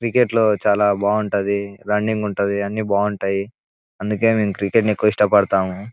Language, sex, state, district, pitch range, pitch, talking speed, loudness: Telugu, male, Telangana, Nalgonda, 100-110 Hz, 105 Hz, 140 wpm, -19 LUFS